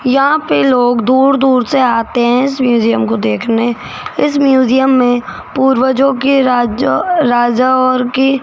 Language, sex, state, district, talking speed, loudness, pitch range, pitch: Hindi, female, Rajasthan, Jaipur, 155 wpm, -12 LUFS, 240-270 Hz, 255 Hz